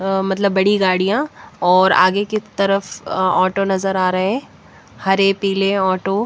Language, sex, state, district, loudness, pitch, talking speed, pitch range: Hindi, female, Bihar, West Champaran, -17 LUFS, 195 Hz, 155 wpm, 185-200 Hz